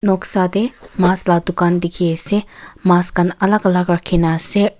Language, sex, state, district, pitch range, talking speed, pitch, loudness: Nagamese, female, Nagaland, Kohima, 175-200 Hz, 165 wpm, 180 Hz, -16 LUFS